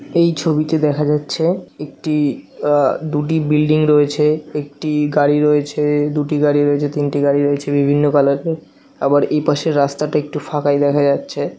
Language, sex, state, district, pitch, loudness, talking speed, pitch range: Bengali, male, West Bengal, North 24 Parganas, 150 Hz, -16 LUFS, 155 wpm, 145-150 Hz